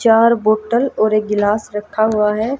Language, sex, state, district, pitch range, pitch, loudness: Hindi, female, Haryana, Jhajjar, 210-225 Hz, 215 Hz, -16 LUFS